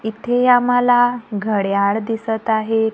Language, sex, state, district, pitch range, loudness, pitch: Marathi, female, Maharashtra, Gondia, 215-245 Hz, -17 LUFS, 225 Hz